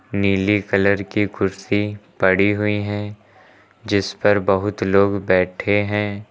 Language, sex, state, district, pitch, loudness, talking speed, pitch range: Hindi, male, Uttar Pradesh, Lucknow, 100 Hz, -19 LUFS, 125 wpm, 100-105 Hz